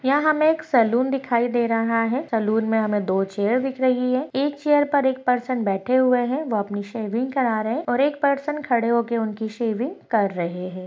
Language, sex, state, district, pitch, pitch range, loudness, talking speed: Hindi, female, Bihar, Muzaffarpur, 245 Hz, 220-270 Hz, -22 LUFS, 220 wpm